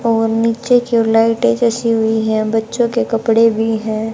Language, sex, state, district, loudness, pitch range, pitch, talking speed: Hindi, male, Haryana, Charkhi Dadri, -15 LUFS, 220-230 Hz, 225 Hz, 175 wpm